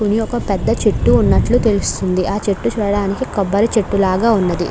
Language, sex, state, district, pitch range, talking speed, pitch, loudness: Telugu, female, Andhra Pradesh, Krishna, 195-220 Hz, 165 wpm, 205 Hz, -16 LUFS